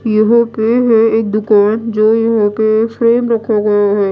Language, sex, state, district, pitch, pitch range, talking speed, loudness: Hindi, female, Odisha, Malkangiri, 220 Hz, 215-230 Hz, 175 wpm, -12 LUFS